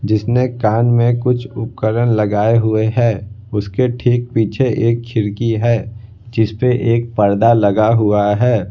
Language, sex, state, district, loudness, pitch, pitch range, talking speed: Hindi, male, Bihar, Patna, -15 LUFS, 115 Hz, 105-120 Hz, 145 wpm